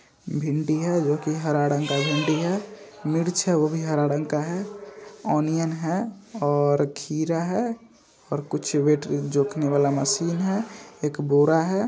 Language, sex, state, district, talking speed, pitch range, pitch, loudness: Hindi, male, Bihar, Saharsa, 160 wpm, 145-185 Hz, 155 Hz, -24 LUFS